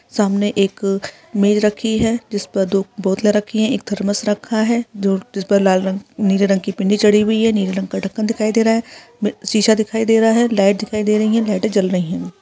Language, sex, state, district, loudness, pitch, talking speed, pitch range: Hindi, female, Uttarakhand, Uttarkashi, -17 LUFS, 210 Hz, 225 wpm, 195-220 Hz